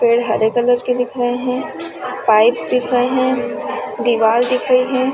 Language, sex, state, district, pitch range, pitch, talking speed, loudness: Hindi, female, Chhattisgarh, Balrampur, 235-255 Hz, 245 Hz, 200 wpm, -16 LUFS